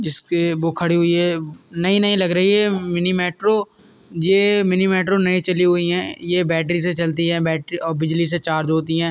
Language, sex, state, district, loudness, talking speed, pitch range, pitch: Hindi, male, Uttar Pradesh, Muzaffarnagar, -18 LUFS, 210 wpm, 165-185 Hz, 175 Hz